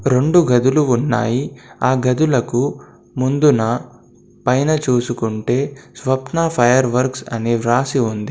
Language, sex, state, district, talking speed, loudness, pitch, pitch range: Telugu, male, Telangana, Komaram Bheem, 100 wpm, -17 LUFS, 125 Hz, 120-135 Hz